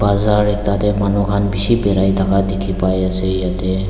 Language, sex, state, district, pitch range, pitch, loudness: Nagamese, male, Nagaland, Dimapur, 95-100 Hz, 100 Hz, -16 LUFS